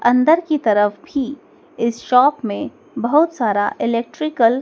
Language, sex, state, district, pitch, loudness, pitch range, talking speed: Hindi, female, Madhya Pradesh, Dhar, 255 Hz, -18 LUFS, 230-310 Hz, 140 wpm